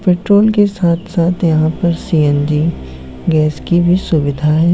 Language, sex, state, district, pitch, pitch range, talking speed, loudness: Hindi, male, Bihar, Lakhisarai, 170 Hz, 150-180 Hz, 150 wpm, -14 LUFS